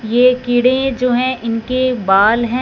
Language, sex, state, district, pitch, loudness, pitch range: Hindi, female, Punjab, Fazilka, 250 Hz, -14 LUFS, 230-255 Hz